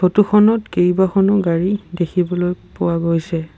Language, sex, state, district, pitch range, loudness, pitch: Assamese, male, Assam, Sonitpur, 170-195 Hz, -17 LUFS, 180 Hz